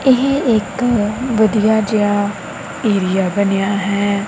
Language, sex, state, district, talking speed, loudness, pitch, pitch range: Punjabi, female, Punjab, Kapurthala, 100 wpm, -16 LUFS, 210 Hz, 200-225 Hz